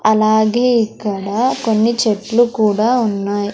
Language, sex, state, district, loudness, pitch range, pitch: Telugu, female, Andhra Pradesh, Sri Satya Sai, -15 LUFS, 210-235 Hz, 220 Hz